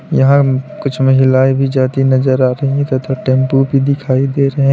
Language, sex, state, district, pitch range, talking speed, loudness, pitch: Hindi, male, Uttar Pradesh, Lalitpur, 130-140 Hz, 190 wpm, -13 LUFS, 135 Hz